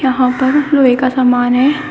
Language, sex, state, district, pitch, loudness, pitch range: Hindi, female, Uttar Pradesh, Shamli, 260 Hz, -12 LUFS, 250-275 Hz